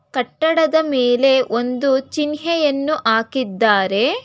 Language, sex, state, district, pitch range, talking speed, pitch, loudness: Kannada, female, Karnataka, Bangalore, 245-310 Hz, 70 wpm, 270 Hz, -17 LUFS